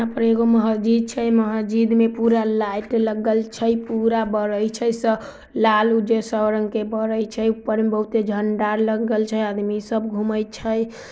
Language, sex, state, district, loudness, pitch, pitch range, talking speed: Maithili, female, Bihar, Samastipur, -21 LUFS, 220 Hz, 215-230 Hz, 175 wpm